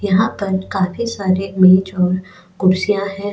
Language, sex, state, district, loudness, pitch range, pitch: Hindi, female, Goa, North and South Goa, -16 LUFS, 185-200 Hz, 190 Hz